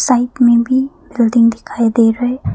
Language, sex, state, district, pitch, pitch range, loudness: Hindi, female, Arunachal Pradesh, Papum Pare, 240 Hz, 230-255 Hz, -14 LUFS